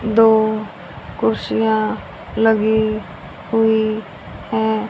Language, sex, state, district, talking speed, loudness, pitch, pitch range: Hindi, female, Haryana, Rohtak, 60 wpm, -18 LUFS, 220 Hz, 215-220 Hz